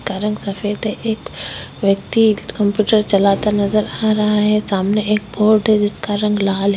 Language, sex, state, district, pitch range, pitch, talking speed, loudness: Hindi, female, Chhattisgarh, Korba, 200-215 Hz, 210 Hz, 175 wpm, -17 LUFS